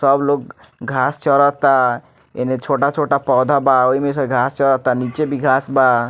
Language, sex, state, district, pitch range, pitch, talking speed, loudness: Bhojpuri, male, Bihar, Muzaffarpur, 130-140 Hz, 135 Hz, 165 wpm, -16 LUFS